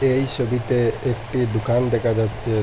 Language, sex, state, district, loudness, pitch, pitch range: Bengali, male, Assam, Hailakandi, -20 LUFS, 120 Hz, 110-125 Hz